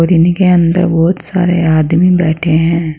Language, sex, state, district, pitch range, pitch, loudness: Hindi, female, Uttar Pradesh, Saharanpur, 160-175 Hz, 170 Hz, -11 LUFS